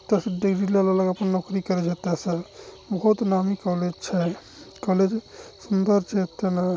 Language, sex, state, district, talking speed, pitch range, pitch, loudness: Hindi, male, Bihar, Araria, 105 wpm, 180-200 Hz, 190 Hz, -24 LUFS